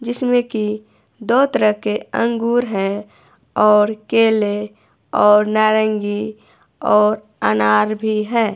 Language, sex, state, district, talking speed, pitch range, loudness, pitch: Hindi, female, Himachal Pradesh, Shimla, 105 wpm, 210-230 Hz, -17 LUFS, 215 Hz